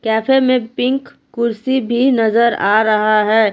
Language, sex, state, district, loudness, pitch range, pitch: Hindi, female, Jharkhand, Palamu, -15 LUFS, 220-255 Hz, 235 Hz